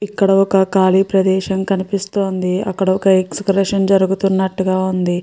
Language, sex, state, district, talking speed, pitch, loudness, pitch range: Telugu, female, Andhra Pradesh, Guntur, 115 wpm, 190 Hz, -16 LUFS, 190-195 Hz